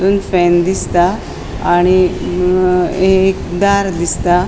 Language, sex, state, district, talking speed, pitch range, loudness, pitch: Konkani, female, Goa, North and South Goa, 120 wpm, 175-190 Hz, -13 LUFS, 180 Hz